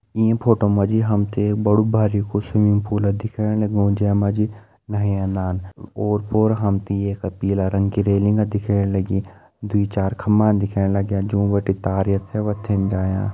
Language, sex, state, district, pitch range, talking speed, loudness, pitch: Hindi, male, Uttarakhand, Uttarkashi, 100-105 Hz, 165 wpm, -20 LUFS, 100 Hz